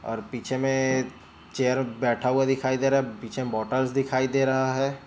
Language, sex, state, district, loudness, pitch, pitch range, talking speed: Hindi, male, Chhattisgarh, Bilaspur, -25 LUFS, 130 Hz, 130-135 Hz, 190 wpm